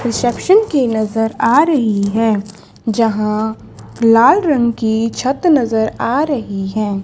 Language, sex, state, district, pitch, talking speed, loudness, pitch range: Hindi, female, Haryana, Charkhi Dadri, 225 Hz, 130 wpm, -15 LUFS, 215-265 Hz